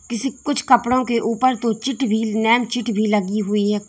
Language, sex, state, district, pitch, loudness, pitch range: Hindi, female, Uttar Pradesh, Lalitpur, 230 Hz, -19 LUFS, 215-255 Hz